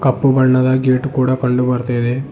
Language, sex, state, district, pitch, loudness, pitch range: Kannada, male, Karnataka, Bidar, 130 Hz, -15 LUFS, 125-130 Hz